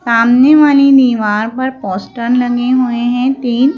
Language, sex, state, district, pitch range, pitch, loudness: Hindi, female, Madhya Pradesh, Bhopal, 235-265 Hz, 245 Hz, -11 LUFS